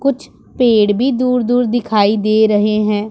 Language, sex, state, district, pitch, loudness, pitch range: Hindi, male, Punjab, Pathankot, 220 Hz, -14 LUFS, 210-250 Hz